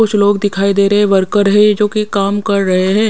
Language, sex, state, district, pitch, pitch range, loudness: Hindi, female, Punjab, Pathankot, 205 Hz, 200-210 Hz, -12 LUFS